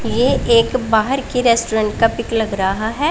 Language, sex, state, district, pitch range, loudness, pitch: Hindi, female, Punjab, Pathankot, 220-240 Hz, -16 LUFS, 230 Hz